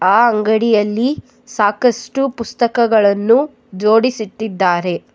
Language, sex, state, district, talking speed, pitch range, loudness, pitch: Kannada, female, Karnataka, Bangalore, 60 wpm, 210-240 Hz, -15 LUFS, 225 Hz